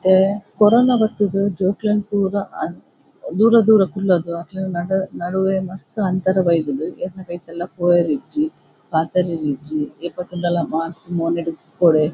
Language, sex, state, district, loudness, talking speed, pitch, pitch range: Tulu, female, Karnataka, Dakshina Kannada, -19 LUFS, 120 wpm, 180 Hz, 170-195 Hz